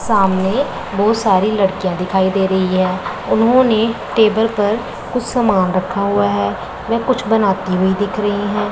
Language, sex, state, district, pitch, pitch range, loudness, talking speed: Hindi, male, Punjab, Pathankot, 205 Hz, 190-225 Hz, -16 LUFS, 150 wpm